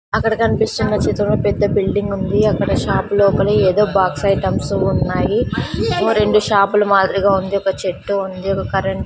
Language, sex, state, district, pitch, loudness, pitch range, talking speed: Telugu, female, Andhra Pradesh, Sri Satya Sai, 200 Hz, -16 LUFS, 195-205 Hz, 160 wpm